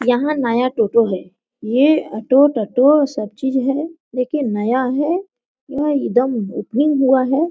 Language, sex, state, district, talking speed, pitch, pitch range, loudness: Hindi, female, Chhattisgarh, Korba, 145 wpm, 260 Hz, 235-290 Hz, -17 LUFS